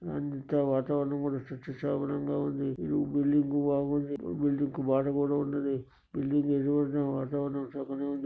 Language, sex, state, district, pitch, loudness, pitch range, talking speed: Telugu, male, Andhra Pradesh, Srikakulam, 140 Hz, -31 LUFS, 140-145 Hz, 150 wpm